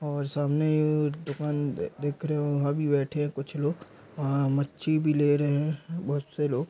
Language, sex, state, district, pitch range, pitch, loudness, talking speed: Hindi, male, Bihar, Darbhanga, 145-150 Hz, 145 Hz, -28 LUFS, 180 wpm